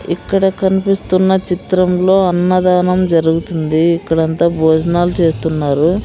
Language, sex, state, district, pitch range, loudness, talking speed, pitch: Telugu, female, Andhra Pradesh, Sri Satya Sai, 165-185 Hz, -14 LUFS, 90 wpm, 175 Hz